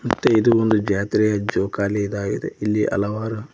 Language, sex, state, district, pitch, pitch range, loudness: Kannada, male, Karnataka, Koppal, 105 Hz, 100-110 Hz, -20 LUFS